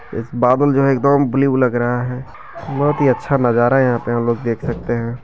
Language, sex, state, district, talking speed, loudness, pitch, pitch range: Maithili, male, Bihar, Begusarai, 230 wpm, -17 LUFS, 125 Hz, 120-140 Hz